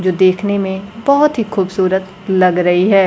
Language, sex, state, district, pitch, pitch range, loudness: Hindi, female, Bihar, Kaimur, 190 Hz, 185-200 Hz, -14 LUFS